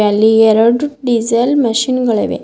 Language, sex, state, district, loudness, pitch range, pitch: Kannada, female, Karnataka, Bidar, -12 LUFS, 220-255 Hz, 235 Hz